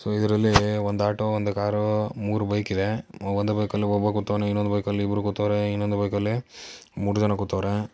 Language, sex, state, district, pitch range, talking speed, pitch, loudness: Kannada, male, Karnataka, Dakshina Kannada, 100-105 Hz, 160 wpm, 105 Hz, -25 LUFS